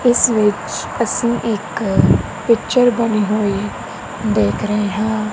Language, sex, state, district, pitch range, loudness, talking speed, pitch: Punjabi, female, Punjab, Kapurthala, 210-235 Hz, -17 LUFS, 110 wpm, 220 Hz